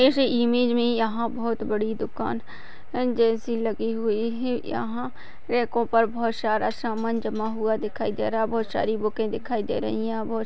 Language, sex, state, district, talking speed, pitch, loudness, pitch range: Hindi, female, Maharashtra, Nagpur, 190 wpm, 230 Hz, -25 LUFS, 220-235 Hz